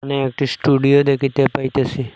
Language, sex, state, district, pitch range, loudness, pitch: Bengali, male, Assam, Hailakandi, 135-140 Hz, -17 LUFS, 135 Hz